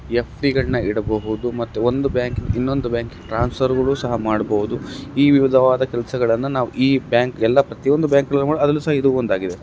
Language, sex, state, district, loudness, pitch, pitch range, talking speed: Kannada, male, Karnataka, Gulbarga, -19 LUFS, 125 Hz, 115-135 Hz, 160 wpm